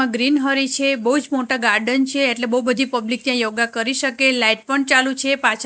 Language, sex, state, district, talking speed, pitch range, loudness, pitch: Gujarati, female, Gujarat, Gandhinagar, 220 wpm, 245-270 Hz, -18 LUFS, 260 Hz